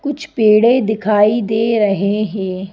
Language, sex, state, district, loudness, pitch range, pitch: Hindi, female, Madhya Pradesh, Bhopal, -15 LUFS, 205-230 Hz, 215 Hz